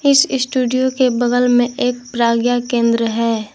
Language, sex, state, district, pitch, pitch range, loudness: Hindi, female, Jharkhand, Garhwa, 245 Hz, 235-255 Hz, -16 LUFS